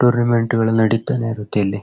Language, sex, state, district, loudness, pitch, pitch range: Kannada, male, Karnataka, Shimoga, -18 LUFS, 115 Hz, 110-120 Hz